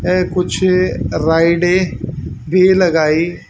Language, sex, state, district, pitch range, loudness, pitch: Hindi, female, Haryana, Charkhi Dadri, 155-185 Hz, -14 LUFS, 175 Hz